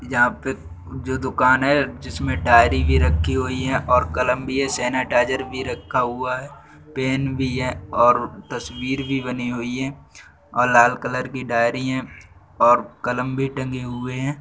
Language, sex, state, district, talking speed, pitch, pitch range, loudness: Bundeli, male, Uttar Pradesh, Budaun, 170 wpm, 125 Hz, 120-130 Hz, -21 LUFS